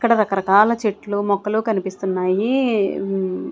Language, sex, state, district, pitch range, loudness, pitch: Telugu, female, Andhra Pradesh, Sri Satya Sai, 195-220 Hz, -19 LUFS, 205 Hz